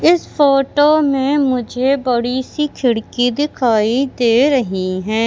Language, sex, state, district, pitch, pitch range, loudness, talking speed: Hindi, female, Madhya Pradesh, Katni, 260 Hz, 240-285 Hz, -15 LUFS, 125 wpm